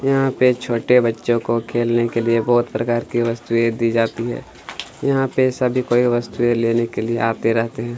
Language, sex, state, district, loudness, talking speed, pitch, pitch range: Hindi, male, Chhattisgarh, Kabirdham, -19 LUFS, 195 wpm, 120 Hz, 115-125 Hz